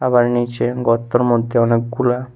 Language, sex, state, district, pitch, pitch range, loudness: Bengali, male, Tripura, West Tripura, 120 Hz, 120-125 Hz, -17 LUFS